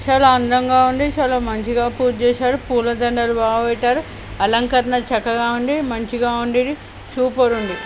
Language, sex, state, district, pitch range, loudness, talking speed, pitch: Telugu, male, Karnataka, Bellary, 235-255 Hz, -18 LUFS, 145 wpm, 245 Hz